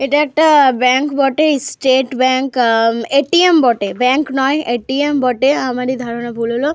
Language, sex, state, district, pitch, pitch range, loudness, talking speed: Bengali, female, Jharkhand, Jamtara, 265 Hz, 250-285 Hz, -14 LUFS, 150 wpm